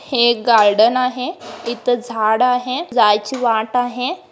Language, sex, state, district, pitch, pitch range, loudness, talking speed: Marathi, female, Karnataka, Belgaum, 245 Hz, 225-255 Hz, -16 LUFS, 125 wpm